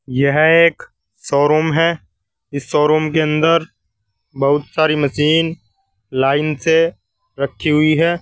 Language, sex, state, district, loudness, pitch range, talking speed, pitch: Hindi, male, Uttar Pradesh, Saharanpur, -16 LUFS, 140-160 Hz, 115 wpm, 150 Hz